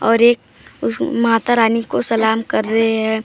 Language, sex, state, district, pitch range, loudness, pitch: Hindi, female, Maharashtra, Gondia, 220-230 Hz, -16 LUFS, 225 Hz